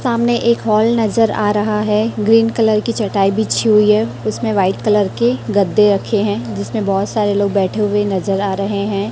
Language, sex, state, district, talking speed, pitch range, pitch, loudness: Hindi, female, Chhattisgarh, Raipur, 205 wpm, 200-220 Hz, 210 Hz, -15 LUFS